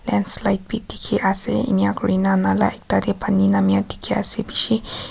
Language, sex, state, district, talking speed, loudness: Nagamese, female, Nagaland, Kohima, 165 wpm, -19 LUFS